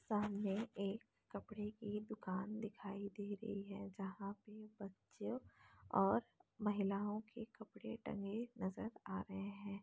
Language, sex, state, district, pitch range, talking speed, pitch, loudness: Hindi, female, Bihar, Jamui, 200-215 Hz, 130 wpm, 205 Hz, -45 LUFS